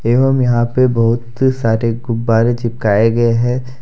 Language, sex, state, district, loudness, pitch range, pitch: Hindi, male, Jharkhand, Deoghar, -14 LUFS, 115-125 Hz, 120 Hz